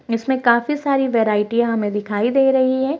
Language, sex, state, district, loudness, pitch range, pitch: Hindi, female, Bihar, Bhagalpur, -18 LUFS, 225-265 Hz, 235 Hz